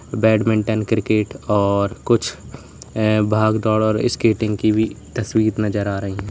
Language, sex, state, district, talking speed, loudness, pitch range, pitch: Hindi, male, Uttar Pradesh, Saharanpur, 135 wpm, -19 LUFS, 105-110 Hz, 110 Hz